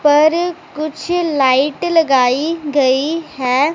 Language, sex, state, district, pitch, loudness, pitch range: Hindi, female, Punjab, Pathankot, 300 Hz, -15 LUFS, 270-330 Hz